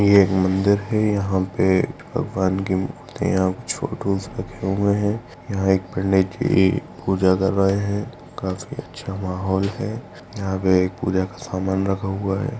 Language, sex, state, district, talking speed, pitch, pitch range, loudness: Hindi, male, Bihar, Gaya, 150 wpm, 95 Hz, 95-100 Hz, -22 LUFS